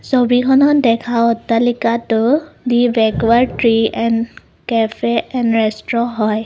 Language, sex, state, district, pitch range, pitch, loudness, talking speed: Assamese, female, Assam, Kamrup Metropolitan, 225-245 Hz, 235 Hz, -15 LUFS, 100 wpm